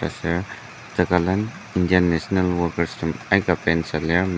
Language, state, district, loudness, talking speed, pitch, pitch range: Ao, Nagaland, Dimapur, -22 LUFS, 135 wpm, 90 Hz, 80-90 Hz